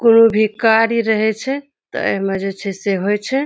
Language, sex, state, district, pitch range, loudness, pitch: Maithili, female, Bihar, Saharsa, 200-230 Hz, -17 LUFS, 220 Hz